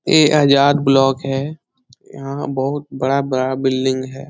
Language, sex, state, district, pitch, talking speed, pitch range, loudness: Hindi, male, Bihar, Lakhisarai, 135 Hz, 140 wpm, 130-140 Hz, -17 LUFS